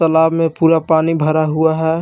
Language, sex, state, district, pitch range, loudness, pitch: Hindi, male, Jharkhand, Palamu, 160-165 Hz, -14 LUFS, 160 Hz